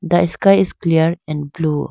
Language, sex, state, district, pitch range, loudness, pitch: English, female, Arunachal Pradesh, Lower Dibang Valley, 155-175 Hz, -16 LUFS, 165 Hz